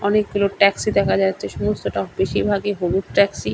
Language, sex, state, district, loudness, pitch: Bengali, male, West Bengal, Kolkata, -20 LUFS, 195 Hz